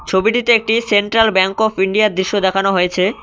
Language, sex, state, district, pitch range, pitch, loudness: Bengali, male, West Bengal, Cooch Behar, 190-220 Hz, 205 Hz, -14 LUFS